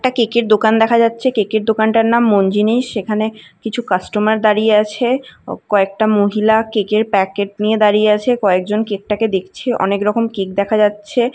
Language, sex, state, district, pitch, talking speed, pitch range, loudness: Bengali, female, West Bengal, North 24 Parganas, 215 Hz, 165 wpm, 205-230 Hz, -15 LUFS